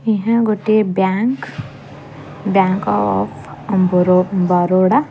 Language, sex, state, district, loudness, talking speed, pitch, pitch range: Odia, female, Odisha, Khordha, -16 LUFS, 95 wpm, 185 Hz, 140-205 Hz